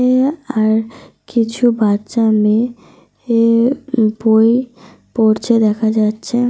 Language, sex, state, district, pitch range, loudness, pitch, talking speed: Bengali, female, Jharkhand, Sahebganj, 220-245 Hz, -15 LUFS, 230 Hz, 85 wpm